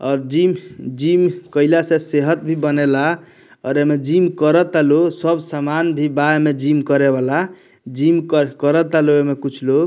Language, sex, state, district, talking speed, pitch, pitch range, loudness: Bhojpuri, male, Bihar, Muzaffarpur, 160 wpm, 150 Hz, 145-165 Hz, -16 LUFS